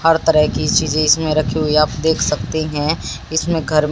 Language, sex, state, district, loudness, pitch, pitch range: Hindi, female, Haryana, Jhajjar, -16 LUFS, 155 Hz, 150-160 Hz